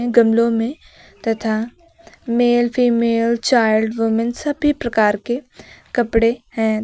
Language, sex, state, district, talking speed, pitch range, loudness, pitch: Hindi, female, Uttar Pradesh, Lucknow, 105 wpm, 225-240 Hz, -18 LUFS, 235 Hz